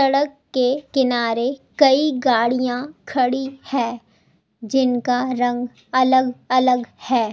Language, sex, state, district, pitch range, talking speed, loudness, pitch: Hindi, female, Delhi, New Delhi, 245-270 Hz, 90 wpm, -20 LUFS, 255 Hz